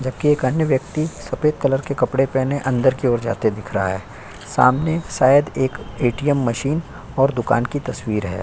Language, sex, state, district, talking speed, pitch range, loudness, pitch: Hindi, male, Uttar Pradesh, Jyotiba Phule Nagar, 190 wpm, 120-145 Hz, -20 LUFS, 130 Hz